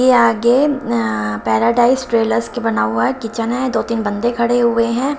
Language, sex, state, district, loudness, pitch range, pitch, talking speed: Hindi, female, Himachal Pradesh, Shimla, -16 LUFS, 225-245 Hz, 235 Hz, 185 wpm